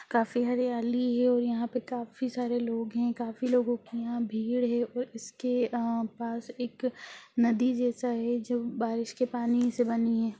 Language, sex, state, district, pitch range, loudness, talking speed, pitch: Hindi, female, Bihar, Jamui, 235-245 Hz, -30 LUFS, 180 wpm, 240 Hz